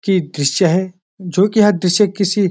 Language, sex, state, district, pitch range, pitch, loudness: Hindi, male, Uttarakhand, Uttarkashi, 180-200 Hz, 190 Hz, -15 LUFS